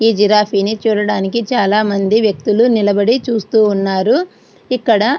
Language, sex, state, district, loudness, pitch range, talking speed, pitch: Telugu, female, Andhra Pradesh, Srikakulam, -14 LUFS, 205-230 Hz, 125 wpm, 215 Hz